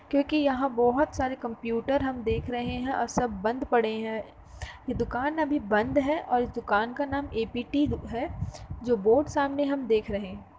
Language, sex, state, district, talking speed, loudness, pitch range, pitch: Hindi, female, Uttar Pradesh, Jalaun, 185 wpm, -28 LUFS, 225-280 Hz, 245 Hz